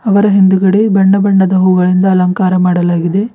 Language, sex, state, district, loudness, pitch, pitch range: Kannada, female, Karnataka, Bidar, -10 LUFS, 190 Hz, 185-200 Hz